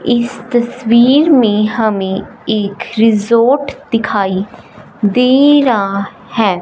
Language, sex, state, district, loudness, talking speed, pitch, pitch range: Hindi, female, Punjab, Fazilka, -13 LUFS, 90 wpm, 230 Hz, 205-245 Hz